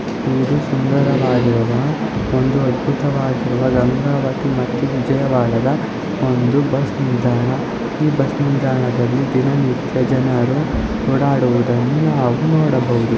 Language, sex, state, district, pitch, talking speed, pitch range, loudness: Kannada, female, Karnataka, Raichur, 130 Hz, 80 wpm, 125-140 Hz, -17 LUFS